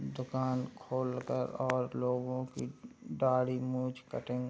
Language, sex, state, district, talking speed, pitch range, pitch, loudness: Hindi, male, Bihar, Gopalganj, 135 wpm, 125-130 Hz, 130 Hz, -35 LUFS